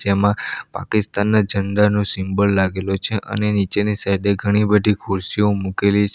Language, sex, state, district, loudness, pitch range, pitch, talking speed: Gujarati, male, Gujarat, Valsad, -19 LUFS, 100-105 Hz, 100 Hz, 145 wpm